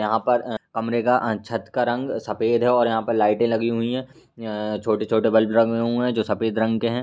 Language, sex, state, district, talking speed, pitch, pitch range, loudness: Hindi, male, Bihar, Lakhisarai, 250 wpm, 115 Hz, 110-120 Hz, -22 LUFS